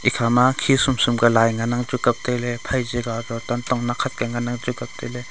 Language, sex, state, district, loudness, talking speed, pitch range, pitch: Wancho, male, Arunachal Pradesh, Longding, -21 LUFS, 225 wpm, 120-125 Hz, 120 Hz